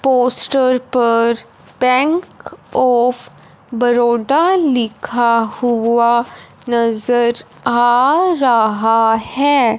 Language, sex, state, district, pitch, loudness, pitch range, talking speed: Hindi, female, Punjab, Fazilka, 240 Hz, -14 LUFS, 235-260 Hz, 65 wpm